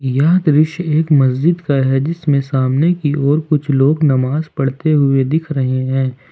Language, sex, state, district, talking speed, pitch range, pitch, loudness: Hindi, male, Jharkhand, Ranchi, 170 wpm, 135-155 Hz, 145 Hz, -15 LUFS